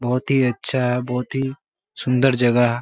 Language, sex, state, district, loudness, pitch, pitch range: Hindi, male, Bihar, Kishanganj, -20 LUFS, 125 Hz, 125-135 Hz